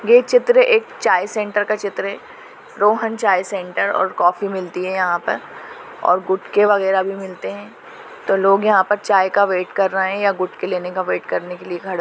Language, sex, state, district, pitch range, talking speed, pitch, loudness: Hindi, female, Maharashtra, Nagpur, 185-205 Hz, 220 wpm, 195 Hz, -18 LUFS